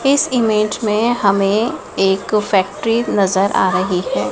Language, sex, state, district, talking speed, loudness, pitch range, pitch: Hindi, female, Madhya Pradesh, Dhar, 140 wpm, -16 LUFS, 195-230 Hz, 210 Hz